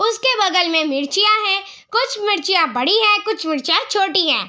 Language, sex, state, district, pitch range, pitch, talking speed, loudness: Hindi, female, Bihar, Araria, 320-425 Hz, 390 Hz, 175 wpm, -16 LUFS